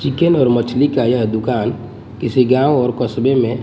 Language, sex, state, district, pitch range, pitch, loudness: Hindi, male, Gujarat, Gandhinagar, 120-130 Hz, 125 Hz, -16 LUFS